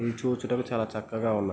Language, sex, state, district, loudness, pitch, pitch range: Telugu, male, Andhra Pradesh, Guntur, -30 LUFS, 115 Hz, 110-125 Hz